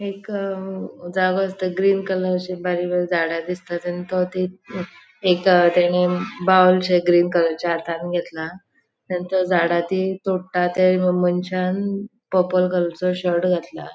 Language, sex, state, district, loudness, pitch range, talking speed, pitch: Konkani, female, Goa, North and South Goa, -20 LUFS, 175-190 Hz, 135 wpm, 180 Hz